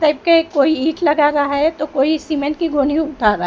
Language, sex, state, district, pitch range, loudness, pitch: Hindi, female, Maharashtra, Mumbai Suburban, 285-315 Hz, -16 LUFS, 300 Hz